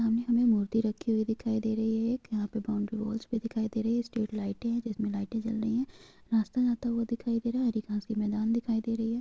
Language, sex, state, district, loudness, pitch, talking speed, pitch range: Hindi, female, Chhattisgarh, Bilaspur, -31 LUFS, 225 Hz, 275 wpm, 220-235 Hz